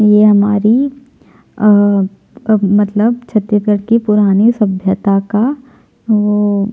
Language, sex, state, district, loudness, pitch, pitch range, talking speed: Hindi, female, Chhattisgarh, Jashpur, -12 LUFS, 210 Hz, 205-230 Hz, 105 wpm